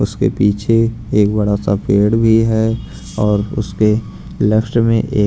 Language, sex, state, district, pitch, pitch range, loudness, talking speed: Hindi, male, Punjab, Pathankot, 105 Hz, 105-115 Hz, -15 LUFS, 160 wpm